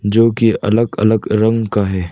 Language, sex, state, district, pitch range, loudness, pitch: Hindi, male, Arunachal Pradesh, Lower Dibang Valley, 105-115 Hz, -15 LUFS, 110 Hz